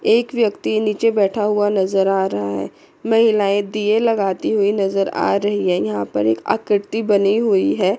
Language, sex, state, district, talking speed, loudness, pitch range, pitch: Hindi, female, Chandigarh, Chandigarh, 180 wpm, -18 LUFS, 190-215 Hz, 205 Hz